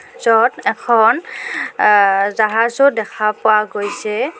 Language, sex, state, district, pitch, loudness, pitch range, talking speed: Assamese, female, Assam, Kamrup Metropolitan, 220 Hz, -15 LUFS, 210-255 Hz, 95 wpm